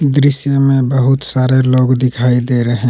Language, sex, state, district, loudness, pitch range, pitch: Hindi, male, Jharkhand, Palamu, -12 LUFS, 125-135 Hz, 130 Hz